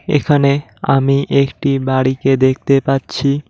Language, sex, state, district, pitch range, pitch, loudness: Bengali, male, West Bengal, Cooch Behar, 135-140 Hz, 135 Hz, -15 LUFS